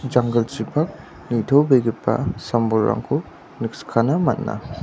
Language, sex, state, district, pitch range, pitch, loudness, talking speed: Garo, male, Meghalaya, West Garo Hills, 115-135 Hz, 120 Hz, -21 LUFS, 60 wpm